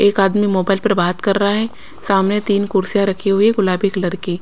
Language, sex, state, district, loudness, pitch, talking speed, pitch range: Hindi, female, Maharashtra, Washim, -16 LUFS, 200 Hz, 230 wpm, 190-205 Hz